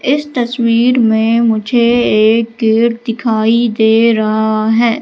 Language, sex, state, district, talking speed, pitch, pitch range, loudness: Hindi, female, Madhya Pradesh, Katni, 120 wpm, 230 Hz, 220-235 Hz, -12 LUFS